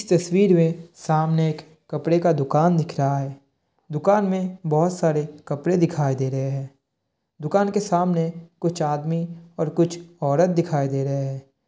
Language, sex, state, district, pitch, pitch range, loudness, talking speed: Hindi, male, Bihar, Kishanganj, 160 Hz, 140-170 Hz, -22 LUFS, 165 wpm